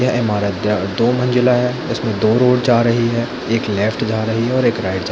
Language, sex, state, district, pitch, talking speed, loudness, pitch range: Hindi, male, Chhattisgarh, Bilaspur, 115 Hz, 255 wpm, -16 LUFS, 105-125 Hz